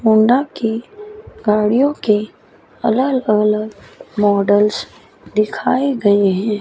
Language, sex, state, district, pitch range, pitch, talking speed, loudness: Hindi, female, Chandigarh, Chandigarh, 210-255 Hz, 215 Hz, 90 wpm, -16 LUFS